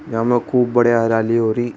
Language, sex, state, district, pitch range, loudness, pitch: Rajasthani, male, Rajasthan, Churu, 115-120 Hz, -17 LUFS, 120 Hz